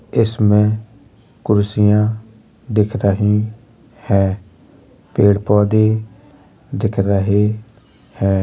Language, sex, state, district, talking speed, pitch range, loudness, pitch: Hindi, female, Uttar Pradesh, Jalaun, 65 wpm, 100-110 Hz, -16 LUFS, 105 Hz